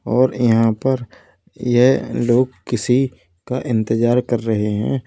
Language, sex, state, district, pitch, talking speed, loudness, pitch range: Hindi, male, Uttar Pradesh, Lalitpur, 120 Hz, 130 wpm, -18 LUFS, 115-125 Hz